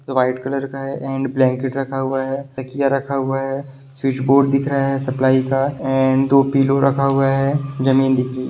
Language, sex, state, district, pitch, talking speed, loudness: Hindi, male, Bihar, Sitamarhi, 135 Hz, 195 wpm, -18 LUFS